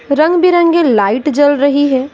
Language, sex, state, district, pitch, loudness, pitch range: Hindi, female, Bihar, West Champaran, 285 Hz, -11 LUFS, 275-325 Hz